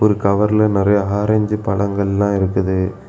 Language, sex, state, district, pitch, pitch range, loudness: Tamil, male, Tamil Nadu, Kanyakumari, 100 Hz, 100-105 Hz, -17 LUFS